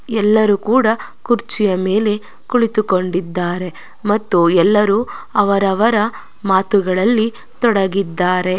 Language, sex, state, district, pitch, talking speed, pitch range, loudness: Kannada, female, Karnataka, Belgaum, 205 Hz, 70 wpm, 185-220 Hz, -16 LUFS